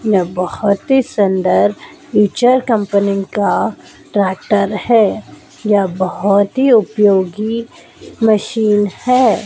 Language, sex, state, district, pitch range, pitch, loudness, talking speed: Hindi, female, Madhya Pradesh, Dhar, 200-230 Hz, 205 Hz, -14 LUFS, 95 wpm